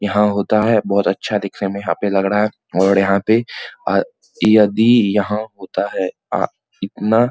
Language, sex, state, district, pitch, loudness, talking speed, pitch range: Hindi, male, Bihar, Muzaffarpur, 105 Hz, -17 LUFS, 180 wpm, 100-110 Hz